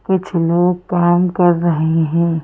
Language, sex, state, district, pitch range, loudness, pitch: Hindi, female, Madhya Pradesh, Bhopal, 165-180 Hz, -15 LUFS, 175 Hz